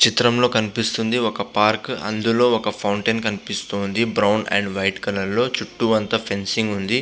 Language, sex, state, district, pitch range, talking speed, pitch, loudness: Telugu, male, Andhra Pradesh, Visakhapatnam, 100-115 Hz, 145 wpm, 110 Hz, -20 LUFS